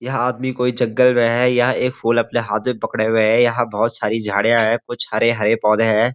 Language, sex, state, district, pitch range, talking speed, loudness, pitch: Hindi, male, Uttarakhand, Uttarkashi, 110-125 Hz, 235 wpm, -17 LUFS, 120 Hz